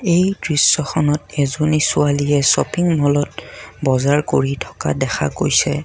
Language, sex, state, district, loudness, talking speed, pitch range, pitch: Assamese, male, Assam, Kamrup Metropolitan, -17 LUFS, 115 wpm, 140-155 Hz, 145 Hz